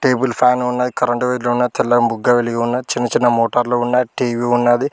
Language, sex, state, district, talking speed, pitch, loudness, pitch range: Telugu, male, Telangana, Mahabubabad, 195 wpm, 120 Hz, -16 LUFS, 120-125 Hz